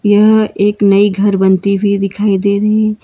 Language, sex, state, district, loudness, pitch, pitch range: Hindi, female, Karnataka, Bangalore, -12 LUFS, 205 Hz, 200-210 Hz